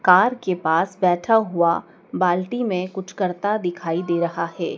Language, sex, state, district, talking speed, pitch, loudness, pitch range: Hindi, male, Madhya Pradesh, Dhar, 165 wpm, 180 Hz, -21 LUFS, 170-190 Hz